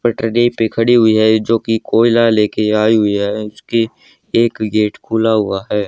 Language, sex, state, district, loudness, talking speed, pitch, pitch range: Hindi, male, Haryana, Rohtak, -14 LUFS, 185 wpm, 110 Hz, 105-115 Hz